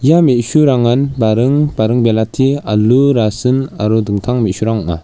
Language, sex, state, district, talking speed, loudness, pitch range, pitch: Garo, male, Meghalaya, West Garo Hills, 130 wpm, -13 LUFS, 110-135 Hz, 120 Hz